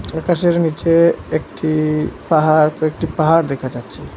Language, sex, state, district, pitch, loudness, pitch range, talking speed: Bengali, male, Assam, Hailakandi, 155 Hz, -16 LUFS, 155-165 Hz, 115 wpm